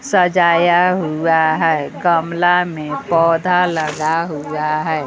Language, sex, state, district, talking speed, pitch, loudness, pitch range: Hindi, female, Bihar, West Champaran, 105 wpm, 165 Hz, -16 LUFS, 155-175 Hz